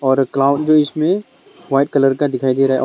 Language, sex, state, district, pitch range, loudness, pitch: Hindi, male, Arunachal Pradesh, Longding, 135-155 Hz, -16 LUFS, 140 Hz